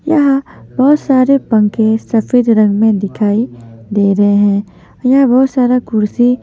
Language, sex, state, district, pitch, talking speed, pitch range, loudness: Hindi, female, Maharashtra, Mumbai Suburban, 225 Hz, 140 wpm, 205-260 Hz, -12 LUFS